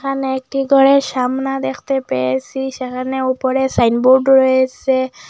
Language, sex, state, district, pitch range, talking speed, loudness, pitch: Bengali, female, Assam, Hailakandi, 255-270 Hz, 115 wpm, -16 LUFS, 265 Hz